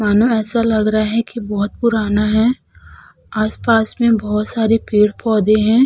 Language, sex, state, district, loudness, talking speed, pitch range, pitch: Hindi, female, Uttar Pradesh, Budaun, -16 LUFS, 165 wpm, 210-230 Hz, 220 Hz